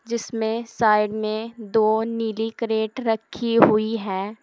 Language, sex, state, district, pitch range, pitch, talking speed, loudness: Hindi, female, Uttar Pradesh, Saharanpur, 215-230 Hz, 225 Hz, 120 wpm, -22 LUFS